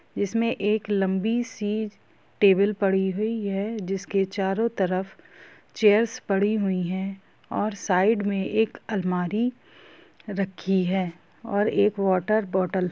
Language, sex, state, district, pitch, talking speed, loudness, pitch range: Hindi, female, Jharkhand, Jamtara, 200 Hz, 120 wpm, -25 LUFS, 190-215 Hz